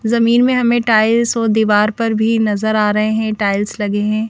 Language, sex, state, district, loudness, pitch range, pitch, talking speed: Hindi, female, Madhya Pradesh, Bhopal, -15 LUFS, 210-230 Hz, 220 Hz, 210 wpm